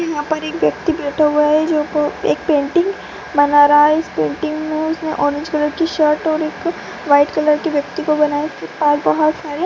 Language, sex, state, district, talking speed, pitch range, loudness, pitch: Hindi, female, Bihar, Purnia, 235 wpm, 295-315 Hz, -16 LUFS, 305 Hz